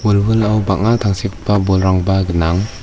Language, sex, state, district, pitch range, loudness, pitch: Garo, male, Meghalaya, West Garo Hills, 95-105 Hz, -15 LUFS, 100 Hz